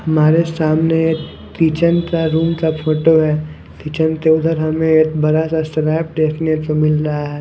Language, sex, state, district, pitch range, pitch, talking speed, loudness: Hindi, male, Punjab, Kapurthala, 155-160 Hz, 160 Hz, 180 wpm, -16 LUFS